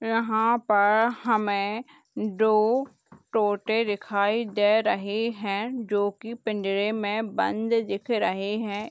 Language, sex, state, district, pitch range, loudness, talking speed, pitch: Hindi, female, Chhattisgarh, Bilaspur, 205-225 Hz, -25 LUFS, 115 wpm, 215 Hz